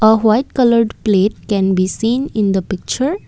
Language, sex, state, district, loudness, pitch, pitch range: English, female, Assam, Kamrup Metropolitan, -15 LUFS, 220 Hz, 195-240 Hz